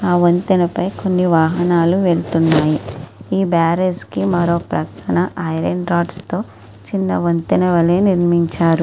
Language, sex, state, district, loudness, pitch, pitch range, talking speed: Telugu, female, Andhra Pradesh, Srikakulam, -16 LUFS, 170 Hz, 165-180 Hz, 120 wpm